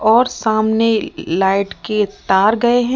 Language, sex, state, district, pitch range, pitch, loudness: Hindi, female, Rajasthan, Jaipur, 200-230 Hz, 220 Hz, -16 LUFS